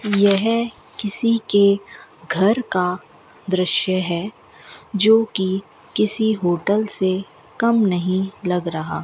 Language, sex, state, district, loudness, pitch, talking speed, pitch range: Hindi, female, Rajasthan, Bikaner, -19 LUFS, 200 Hz, 100 wpm, 185-215 Hz